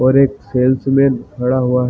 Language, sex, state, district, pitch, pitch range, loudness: Hindi, male, Chhattisgarh, Balrampur, 130 Hz, 125-135 Hz, -15 LUFS